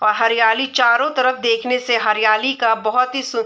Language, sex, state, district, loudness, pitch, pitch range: Hindi, female, Bihar, Sitamarhi, -16 LUFS, 235 Hz, 225-255 Hz